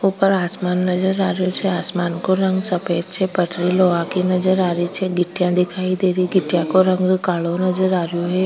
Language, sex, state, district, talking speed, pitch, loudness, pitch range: Rajasthani, female, Rajasthan, Churu, 185 wpm, 185 Hz, -18 LUFS, 175-185 Hz